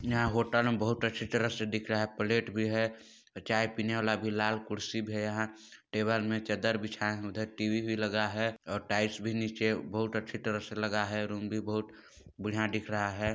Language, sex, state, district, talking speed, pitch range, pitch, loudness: Hindi, male, Chhattisgarh, Balrampur, 220 wpm, 105-110 Hz, 110 Hz, -33 LUFS